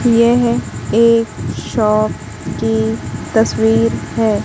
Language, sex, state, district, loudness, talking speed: Hindi, female, Madhya Pradesh, Katni, -15 LUFS, 80 wpm